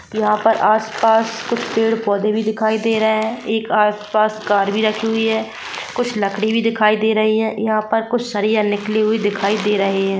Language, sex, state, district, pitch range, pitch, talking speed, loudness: Hindi, female, Jharkhand, Jamtara, 210-225 Hz, 215 Hz, 200 wpm, -17 LUFS